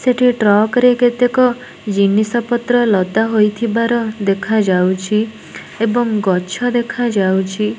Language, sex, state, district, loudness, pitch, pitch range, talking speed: Odia, female, Odisha, Nuapada, -15 LUFS, 220 Hz, 205-240 Hz, 90 wpm